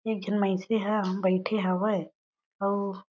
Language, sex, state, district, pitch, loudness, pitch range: Chhattisgarhi, female, Chhattisgarh, Jashpur, 200 Hz, -28 LUFS, 190-210 Hz